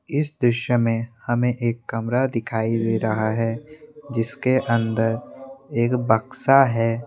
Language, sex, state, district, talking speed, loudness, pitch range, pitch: Hindi, male, Assam, Kamrup Metropolitan, 125 wpm, -22 LUFS, 115-130 Hz, 120 Hz